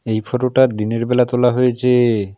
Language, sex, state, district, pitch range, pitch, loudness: Bengali, male, West Bengal, Alipurduar, 110-125 Hz, 125 Hz, -16 LUFS